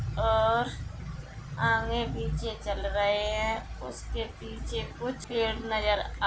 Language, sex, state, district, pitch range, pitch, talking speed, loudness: Hindi, female, Bihar, Saran, 205-225 Hz, 220 Hz, 105 wpm, -30 LUFS